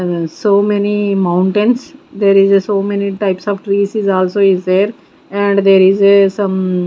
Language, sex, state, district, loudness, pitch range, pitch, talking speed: English, female, Punjab, Kapurthala, -13 LUFS, 190-205 Hz, 200 Hz, 175 wpm